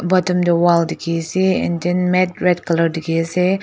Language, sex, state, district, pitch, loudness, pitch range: Nagamese, female, Nagaland, Dimapur, 175 Hz, -17 LUFS, 165-180 Hz